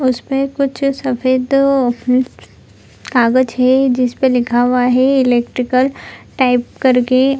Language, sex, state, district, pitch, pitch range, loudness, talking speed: Hindi, female, Bihar, Samastipur, 255 Hz, 250-270 Hz, -14 LUFS, 115 wpm